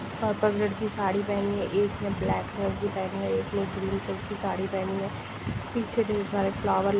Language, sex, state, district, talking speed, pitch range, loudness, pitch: Hindi, female, Jharkhand, Sahebganj, 215 wpm, 190-210 Hz, -29 LUFS, 200 Hz